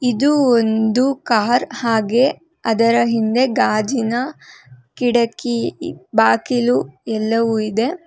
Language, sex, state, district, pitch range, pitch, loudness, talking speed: Kannada, female, Karnataka, Bangalore, 225-255 Hz, 235 Hz, -17 LUFS, 80 wpm